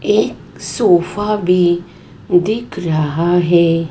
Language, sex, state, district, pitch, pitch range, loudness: Hindi, male, Madhya Pradesh, Dhar, 175 Hz, 170-180 Hz, -15 LUFS